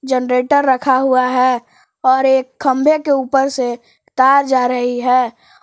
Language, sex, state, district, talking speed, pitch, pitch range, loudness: Hindi, female, Jharkhand, Palamu, 150 wpm, 260 Hz, 250-270 Hz, -15 LUFS